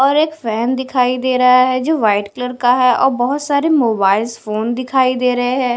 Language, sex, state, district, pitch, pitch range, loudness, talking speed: Hindi, female, Punjab, Kapurthala, 250 Hz, 240-260 Hz, -15 LUFS, 220 wpm